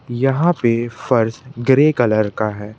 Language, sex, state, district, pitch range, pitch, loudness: Hindi, male, Madhya Pradesh, Bhopal, 110-135 Hz, 120 Hz, -17 LUFS